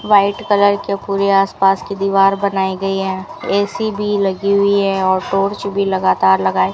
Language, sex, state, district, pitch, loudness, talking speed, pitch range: Hindi, female, Rajasthan, Bikaner, 195 Hz, -16 LUFS, 185 wpm, 190-200 Hz